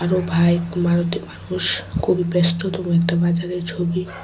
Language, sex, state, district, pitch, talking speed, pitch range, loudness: Bengali, female, Tripura, West Tripura, 170 Hz, 85 wpm, 170-180 Hz, -20 LUFS